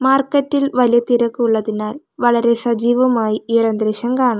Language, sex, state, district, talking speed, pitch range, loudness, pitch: Malayalam, female, Kerala, Kollam, 125 wpm, 225-255 Hz, -16 LUFS, 240 Hz